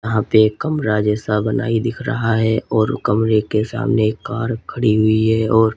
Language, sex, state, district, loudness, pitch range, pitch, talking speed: Hindi, male, Uttar Pradesh, Lalitpur, -18 LUFS, 110-115 Hz, 110 Hz, 195 wpm